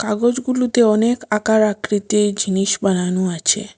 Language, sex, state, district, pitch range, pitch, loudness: Bengali, female, Assam, Hailakandi, 195-225 Hz, 210 Hz, -17 LUFS